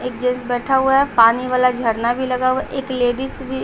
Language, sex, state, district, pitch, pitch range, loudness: Hindi, female, Bihar, Patna, 255 Hz, 245-265 Hz, -18 LUFS